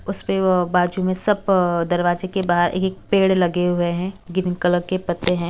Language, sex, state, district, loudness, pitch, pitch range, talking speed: Hindi, female, Bihar, West Champaran, -20 LUFS, 180 Hz, 175-190 Hz, 205 wpm